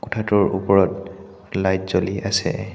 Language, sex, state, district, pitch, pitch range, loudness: Assamese, male, Assam, Hailakandi, 95 Hz, 95-105 Hz, -20 LUFS